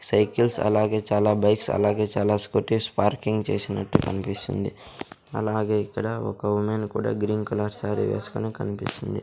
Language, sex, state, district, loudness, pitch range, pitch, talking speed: Telugu, male, Andhra Pradesh, Sri Satya Sai, -25 LUFS, 105-110 Hz, 105 Hz, 130 wpm